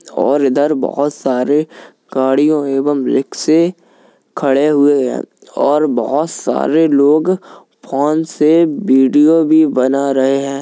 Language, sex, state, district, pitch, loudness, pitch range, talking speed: Hindi, male, Uttar Pradesh, Jalaun, 145 Hz, -14 LUFS, 135-155 Hz, 120 wpm